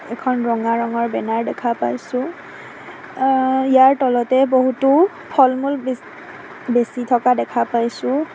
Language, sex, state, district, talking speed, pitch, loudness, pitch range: Assamese, female, Assam, Sonitpur, 115 wpm, 255 Hz, -18 LUFS, 235-265 Hz